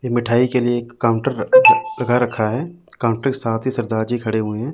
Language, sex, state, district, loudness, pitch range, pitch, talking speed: Hindi, male, Chandigarh, Chandigarh, -18 LUFS, 115-130 Hz, 120 Hz, 240 wpm